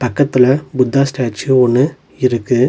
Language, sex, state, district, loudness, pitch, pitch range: Tamil, male, Tamil Nadu, Nilgiris, -14 LUFS, 130 Hz, 125-135 Hz